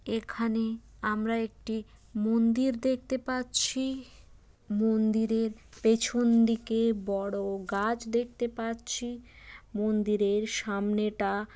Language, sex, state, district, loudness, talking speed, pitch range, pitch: Bengali, female, West Bengal, Jalpaiguri, -29 LUFS, 80 wpm, 210-235 Hz, 225 Hz